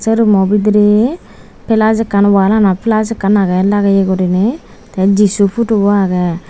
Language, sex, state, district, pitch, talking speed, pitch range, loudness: Chakma, female, Tripura, Unakoti, 205 Hz, 140 wpm, 195-220 Hz, -12 LUFS